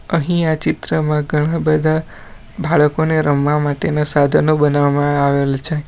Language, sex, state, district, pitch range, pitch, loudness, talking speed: Gujarati, male, Gujarat, Valsad, 145-155 Hz, 150 Hz, -16 LUFS, 120 wpm